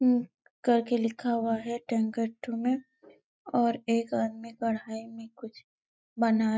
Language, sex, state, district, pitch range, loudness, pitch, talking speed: Hindi, female, Chhattisgarh, Bastar, 225-240 Hz, -30 LUFS, 230 Hz, 110 wpm